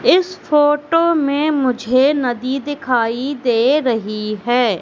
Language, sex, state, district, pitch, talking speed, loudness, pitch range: Hindi, female, Madhya Pradesh, Katni, 265 Hz, 110 wpm, -17 LUFS, 240-295 Hz